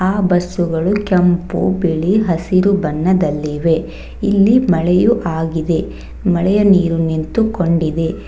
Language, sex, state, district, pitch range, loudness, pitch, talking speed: Kannada, female, Karnataka, Bangalore, 165-195 Hz, -15 LUFS, 180 Hz, 100 wpm